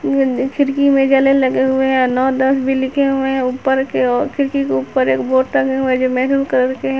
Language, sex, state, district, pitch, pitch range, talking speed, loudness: Hindi, female, Jharkhand, Garhwa, 265 Hz, 255-270 Hz, 255 wpm, -15 LUFS